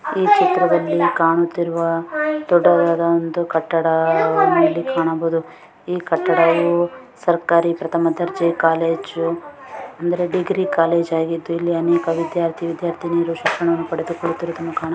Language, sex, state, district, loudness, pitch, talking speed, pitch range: Kannada, female, Karnataka, Mysore, -18 LUFS, 170 Hz, 105 wpm, 165-175 Hz